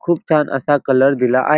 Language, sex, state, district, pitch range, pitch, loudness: Marathi, male, Maharashtra, Dhule, 130-155 Hz, 145 Hz, -15 LUFS